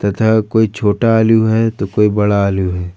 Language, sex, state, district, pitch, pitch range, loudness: Hindi, male, Jharkhand, Ranchi, 105 Hz, 100-110 Hz, -14 LUFS